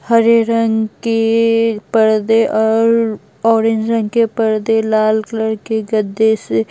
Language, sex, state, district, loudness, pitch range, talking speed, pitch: Hindi, female, Bihar, Patna, -14 LUFS, 220-230 Hz, 125 wpm, 225 Hz